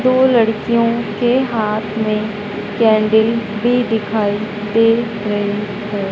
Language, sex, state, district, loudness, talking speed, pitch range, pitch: Hindi, female, Madhya Pradesh, Dhar, -16 LUFS, 110 wpm, 210-230 Hz, 215 Hz